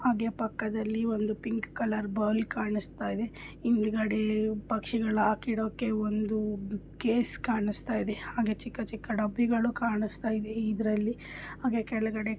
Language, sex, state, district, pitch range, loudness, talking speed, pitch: Kannada, female, Karnataka, Bijapur, 215-230 Hz, -31 LUFS, 115 wpm, 220 Hz